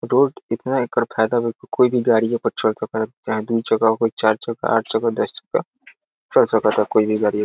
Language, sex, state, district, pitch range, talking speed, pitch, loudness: Bhojpuri, male, Bihar, Saran, 110-115 Hz, 265 wpm, 110 Hz, -20 LUFS